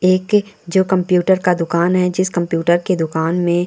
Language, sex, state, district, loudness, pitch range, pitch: Hindi, female, Uttarakhand, Uttarkashi, -16 LUFS, 170-185 Hz, 180 Hz